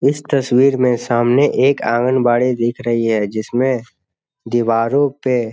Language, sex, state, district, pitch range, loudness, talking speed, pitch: Hindi, male, Bihar, Jamui, 120-135 Hz, -16 LUFS, 150 wpm, 125 Hz